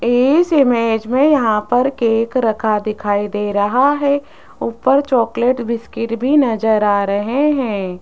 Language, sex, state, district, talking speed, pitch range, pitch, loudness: Hindi, female, Rajasthan, Jaipur, 140 wpm, 215-270 Hz, 235 Hz, -16 LUFS